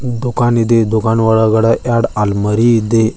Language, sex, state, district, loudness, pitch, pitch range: Kannada, male, Karnataka, Bidar, -13 LUFS, 115 Hz, 110-120 Hz